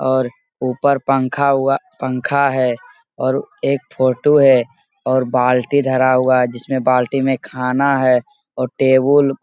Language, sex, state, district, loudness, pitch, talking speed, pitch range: Hindi, male, Bihar, Jamui, -16 LUFS, 130 Hz, 145 wpm, 125-140 Hz